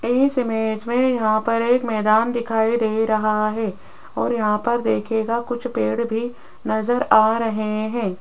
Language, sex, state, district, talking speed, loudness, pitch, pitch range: Hindi, female, Rajasthan, Jaipur, 160 wpm, -20 LUFS, 225 Hz, 215-235 Hz